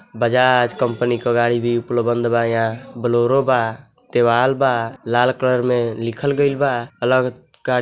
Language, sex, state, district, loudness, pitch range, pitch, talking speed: Bhojpuri, male, Uttar Pradesh, Deoria, -18 LUFS, 120-130 Hz, 120 Hz, 160 wpm